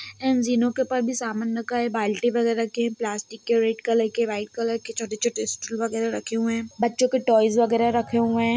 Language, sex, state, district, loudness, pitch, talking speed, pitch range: Hindi, male, Bihar, Gaya, -24 LUFS, 230 Hz, 230 wpm, 225-235 Hz